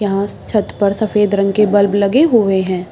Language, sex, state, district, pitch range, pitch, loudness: Hindi, female, Bihar, Saharsa, 195-210 Hz, 205 Hz, -14 LUFS